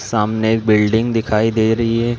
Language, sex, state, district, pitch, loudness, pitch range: Hindi, male, Chhattisgarh, Balrampur, 110 Hz, -16 LUFS, 110-115 Hz